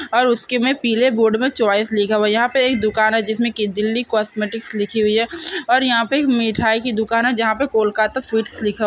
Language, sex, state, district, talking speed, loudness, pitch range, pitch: Hindi, female, Bihar, Gopalganj, 245 wpm, -17 LUFS, 215-250 Hz, 225 Hz